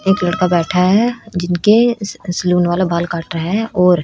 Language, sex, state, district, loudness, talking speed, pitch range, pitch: Hindi, female, Haryana, Rohtak, -15 LUFS, 195 wpm, 175-205 Hz, 180 Hz